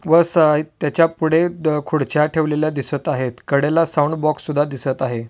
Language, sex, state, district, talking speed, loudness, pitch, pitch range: Marathi, male, Maharashtra, Solapur, 145 wpm, -17 LUFS, 150 Hz, 140-160 Hz